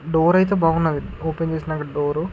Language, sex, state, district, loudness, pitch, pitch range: Telugu, male, Andhra Pradesh, Guntur, -20 LUFS, 160 Hz, 155-165 Hz